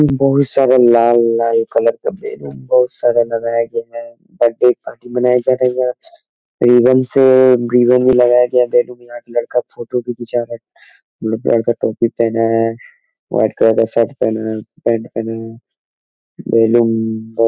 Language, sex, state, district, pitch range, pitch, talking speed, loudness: Hindi, male, Jharkhand, Sahebganj, 115-125 Hz, 120 Hz, 145 wpm, -14 LUFS